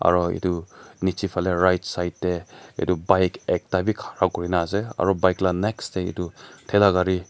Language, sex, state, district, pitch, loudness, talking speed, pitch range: Nagamese, male, Nagaland, Dimapur, 95 Hz, -23 LUFS, 180 wpm, 90-95 Hz